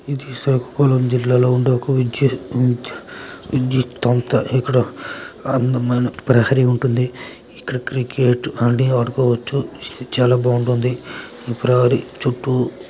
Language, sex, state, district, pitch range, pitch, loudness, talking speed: Telugu, male, Andhra Pradesh, Srikakulam, 125-130 Hz, 125 Hz, -18 LUFS, 75 wpm